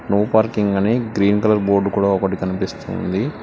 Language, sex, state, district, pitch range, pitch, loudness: Telugu, male, Telangana, Hyderabad, 100-105 Hz, 100 Hz, -18 LUFS